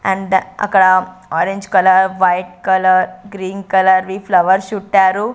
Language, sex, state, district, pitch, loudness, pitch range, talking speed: Telugu, female, Andhra Pradesh, Sri Satya Sai, 190 Hz, -14 LUFS, 185-195 Hz, 125 wpm